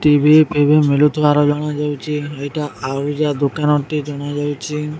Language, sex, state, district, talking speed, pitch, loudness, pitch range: Odia, male, Odisha, Sambalpur, 120 wpm, 150 Hz, -17 LUFS, 145-150 Hz